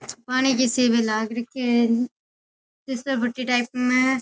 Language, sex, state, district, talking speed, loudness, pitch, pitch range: Rajasthani, female, Rajasthan, Nagaur, 140 wpm, -22 LUFS, 250 Hz, 235-255 Hz